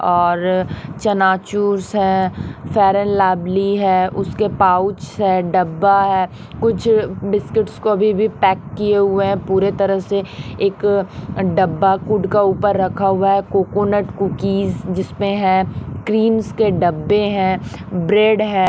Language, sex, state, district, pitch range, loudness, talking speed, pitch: Hindi, female, Haryana, Rohtak, 185-205 Hz, -17 LUFS, 135 wpm, 195 Hz